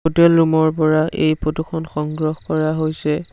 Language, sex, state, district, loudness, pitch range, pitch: Assamese, male, Assam, Sonitpur, -18 LUFS, 155-160 Hz, 155 Hz